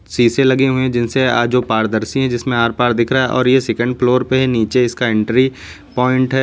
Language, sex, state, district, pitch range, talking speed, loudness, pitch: Hindi, male, Uttar Pradesh, Lucknow, 120-130 Hz, 235 wpm, -15 LUFS, 125 Hz